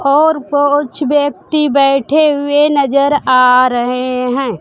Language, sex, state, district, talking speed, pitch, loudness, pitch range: Hindi, female, Bihar, Kaimur, 115 wpm, 285 Hz, -12 LUFS, 255-290 Hz